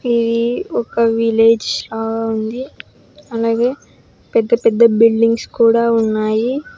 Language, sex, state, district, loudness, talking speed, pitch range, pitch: Telugu, female, Telangana, Hyderabad, -15 LUFS, 95 wpm, 225-235 Hz, 230 Hz